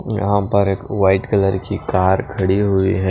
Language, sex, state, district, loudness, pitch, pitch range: Hindi, male, Maharashtra, Washim, -17 LUFS, 95 Hz, 95-100 Hz